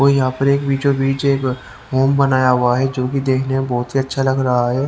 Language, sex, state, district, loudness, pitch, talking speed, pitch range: Hindi, male, Haryana, Rohtak, -17 LUFS, 135 Hz, 220 wpm, 130-135 Hz